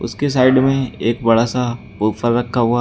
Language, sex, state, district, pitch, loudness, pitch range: Hindi, male, Uttar Pradesh, Shamli, 120 Hz, -17 LUFS, 115-130 Hz